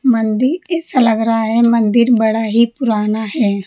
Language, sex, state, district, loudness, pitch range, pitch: Hindi, female, Rajasthan, Jaipur, -14 LUFS, 220-245 Hz, 230 Hz